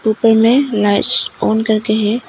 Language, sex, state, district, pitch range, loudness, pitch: Hindi, female, Arunachal Pradesh, Papum Pare, 215-225 Hz, -13 LUFS, 220 Hz